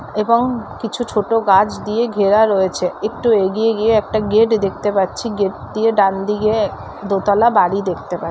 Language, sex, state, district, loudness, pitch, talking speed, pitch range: Bengali, female, West Bengal, North 24 Parganas, -16 LUFS, 210 Hz, 150 wpm, 195-225 Hz